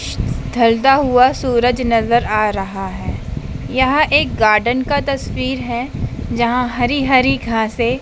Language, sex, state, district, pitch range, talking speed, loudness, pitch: Hindi, female, Madhya Pradesh, Dhar, 225-260 Hz, 125 wpm, -16 LUFS, 245 Hz